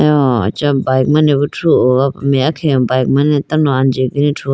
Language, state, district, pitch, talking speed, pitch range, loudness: Idu Mishmi, Arunachal Pradesh, Lower Dibang Valley, 140 Hz, 200 wpm, 130-150 Hz, -13 LUFS